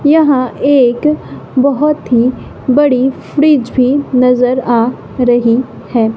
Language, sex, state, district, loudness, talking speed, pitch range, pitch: Hindi, female, Bihar, West Champaran, -12 LUFS, 105 wpm, 245-285 Hz, 260 Hz